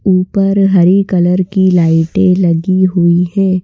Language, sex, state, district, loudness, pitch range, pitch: Hindi, female, Madhya Pradesh, Bhopal, -11 LUFS, 175-190 Hz, 185 Hz